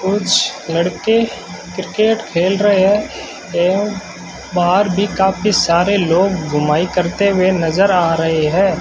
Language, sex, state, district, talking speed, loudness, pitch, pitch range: Hindi, male, Rajasthan, Bikaner, 130 wpm, -15 LUFS, 185 Hz, 170-200 Hz